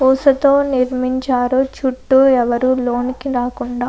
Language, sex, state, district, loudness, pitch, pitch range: Telugu, female, Andhra Pradesh, Anantapur, -16 LUFS, 255 Hz, 250-265 Hz